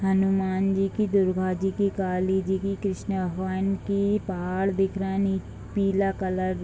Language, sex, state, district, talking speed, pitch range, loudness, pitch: Hindi, female, Bihar, Bhagalpur, 170 wpm, 190-195 Hz, -26 LUFS, 195 Hz